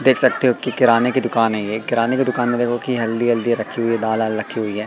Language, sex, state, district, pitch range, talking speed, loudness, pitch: Hindi, male, Madhya Pradesh, Katni, 110-125 Hz, 295 wpm, -18 LUFS, 115 Hz